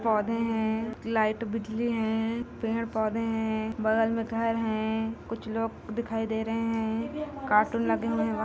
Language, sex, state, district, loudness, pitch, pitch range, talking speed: Hindi, female, Chhattisgarh, Korba, -29 LUFS, 225 Hz, 220-230 Hz, 165 wpm